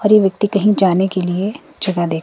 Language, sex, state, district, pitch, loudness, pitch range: Hindi, female, Himachal Pradesh, Shimla, 195 Hz, -16 LUFS, 185-210 Hz